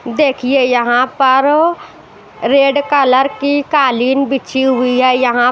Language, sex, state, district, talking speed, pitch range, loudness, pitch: Hindi, female, Bihar, West Champaran, 120 wpm, 255-285 Hz, -12 LUFS, 265 Hz